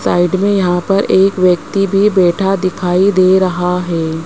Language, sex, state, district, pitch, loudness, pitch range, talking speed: Hindi, male, Rajasthan, Jaipur, 185 Hz, -13 LUFS, 180-195 Hz, 170 wpm